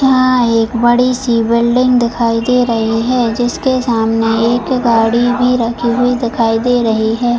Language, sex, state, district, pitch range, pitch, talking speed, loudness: Hindi, female, Chhattisgarh, Bilaspur, 230-250 Hz, 240 Hz, 160 wpm, -13 LUFS